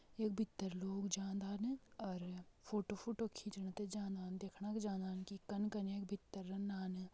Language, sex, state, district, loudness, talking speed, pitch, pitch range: Garhwali, female, Uttarakhand, Tehri Garhwal, -45 LUFS, 160 wpm, 200 Hz, 190-210 Hz